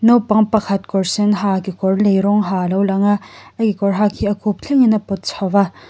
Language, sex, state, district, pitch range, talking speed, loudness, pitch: Mizo, female, Mizoram, Aizawl, 195-210 Hz, 245 wpm, -17 LUFS, 200 Hz